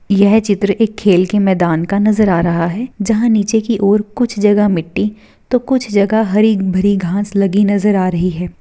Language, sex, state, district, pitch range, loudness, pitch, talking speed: Hindi, female, Bihar, Darbhanga, 190-215 Hz, -14 LUFS, 205 Hz, 195 wpm